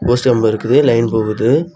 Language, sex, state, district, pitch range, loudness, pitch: Tamil, male, Tamil Nadu, Kanyakumari, 110-125 Hz, -14 LUFS, 115 Hz